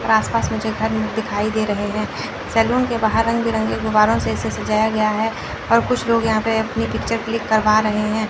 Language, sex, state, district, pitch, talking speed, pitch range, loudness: Hindi, male, Chandigarh, Chandigarh, 220 Hz, 215 wpm, 215-225 Hz, -19 LUFS